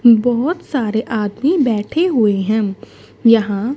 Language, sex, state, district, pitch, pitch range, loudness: Hindi, female, Haryana, Charkhi Dadri, 230 Hz, 215-260 Hz, -16 LUFS